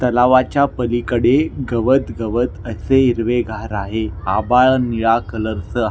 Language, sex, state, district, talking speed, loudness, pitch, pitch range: Marathi, male, Maharashtra, Nagpur, 110 wpm, -17 LUFS, 120 Hz, 110-125 Hz